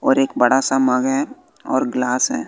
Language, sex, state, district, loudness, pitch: Hindi, male, Bihar, West Champaran, -18 LUFS, 135 Hz